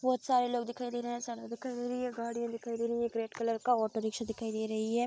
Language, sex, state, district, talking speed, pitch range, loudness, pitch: Hindi, female, Bihar, Saharsa, 285 wpm, 230-245 Hz, -34 LUFS, 235 Hz